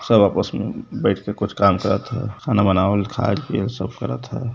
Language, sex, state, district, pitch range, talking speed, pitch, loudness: Hindi, male, Uttar Pradesh, Varanasi, 95-110 Hz, 225 wpm, 105 Hz, -21 LUFS